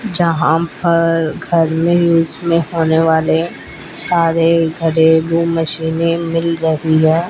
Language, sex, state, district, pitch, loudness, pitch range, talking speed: Hindi, female, Rajasthan, Bikaner, 165 Hz, -14 LUFS, 160-170 Hz, 115 wpm